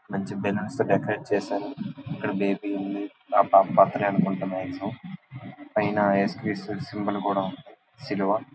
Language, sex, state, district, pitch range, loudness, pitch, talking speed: Telugu, male, Andhra Pradesh, Visakhapatnam, 100-110 Hz, -26 LUFS, 100 Hz, 145 wpm